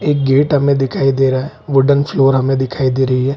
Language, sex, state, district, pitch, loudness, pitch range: Hindi, male, Bihar, Gaya, 135 Hz, -14 LUFS, 130-140 Hz